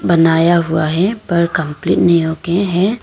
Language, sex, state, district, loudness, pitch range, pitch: Hindi, female, Arunachal Pradesh, Papum Pare, -14 LUFS, 160-180 Hz, 170 Hz